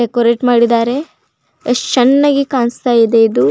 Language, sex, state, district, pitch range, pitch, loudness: Kannada, female, Karnataka, Belgaum, 235-255 Hz, 245 Hz, -12 LUFS